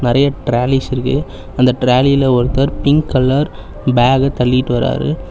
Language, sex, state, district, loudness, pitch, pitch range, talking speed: Tamil, male, Tamil Nadu, Chennai, -14 LUFS, 130 Hz, 125-135 Hz, 125 wpm